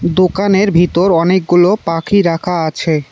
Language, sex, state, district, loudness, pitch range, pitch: Bengali, male, West Bengal, Cooch Behar, -13 LUFS, 165-190 Hz, 175 Hz